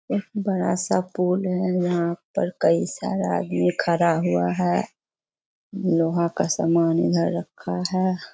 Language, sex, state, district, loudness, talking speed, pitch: Hindi, female, Bihar, Begusarai, -23 LUFS, 135 wpm, 170 Hz